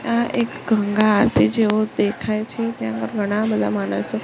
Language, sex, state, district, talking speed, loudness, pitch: Gujarati, female, Gujarat, Gandhinagar, 155 wpm, -20 LUFS, 215 Hz